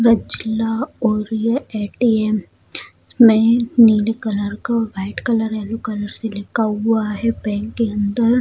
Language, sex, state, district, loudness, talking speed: Hindi, female, Bihar, Jamui, -18 LUFS, 135 wpm